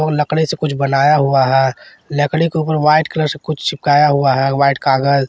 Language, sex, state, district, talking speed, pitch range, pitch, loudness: Hindi, male, Jharkhand, Garhwa, 205 wpm, 140-155 Hz, 145 Hz, -15 LUFS